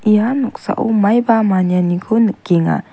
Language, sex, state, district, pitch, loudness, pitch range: Garo, female, Meghalaya, West Garo Hills, 215 Hz, -15 LUFS, 180-230 Hz